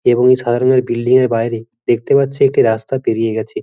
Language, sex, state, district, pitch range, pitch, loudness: Bengali, male, West Bengal, Jhargram, 115-130 Hz, 120 Hz, -14 LUFS